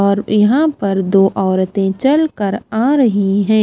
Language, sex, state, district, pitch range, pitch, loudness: Hindi, female, Himachal Pradesh, Shimla, 195-240 Hz, 205 Hz, -14 LUFS